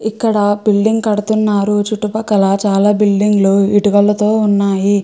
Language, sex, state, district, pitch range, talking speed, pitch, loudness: Telugu, female, Andhra Pradesh, Chittoor, 200-215 Hz, 105 wpm, 205 Hz, -13 LUFS